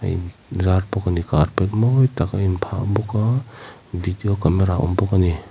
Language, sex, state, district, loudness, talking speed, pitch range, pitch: Mizo, male, Mizoram, Aizawl, -20 LUFS, 175 wpm, 90-110 Hz, 95 Hz